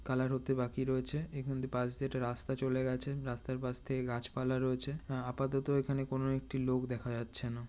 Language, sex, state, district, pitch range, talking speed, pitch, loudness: Bengali, male, West Bengal, North 24 Parganas, 125-135 Hz, 185 wpm, 130 Hz, -36 LUFS